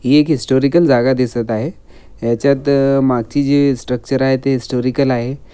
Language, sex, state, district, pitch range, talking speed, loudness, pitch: Marathi, male, Maharashtra, Aurangabad, 125-140 Hz, 150 wpm, -15 LUFS, 130 Hz